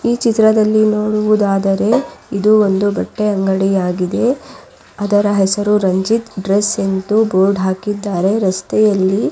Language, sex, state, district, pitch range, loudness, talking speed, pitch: Kannada, female, Karnataka, Raichur, 195-215 Hz, -15 LUFS, 110 wpm, 205 Hz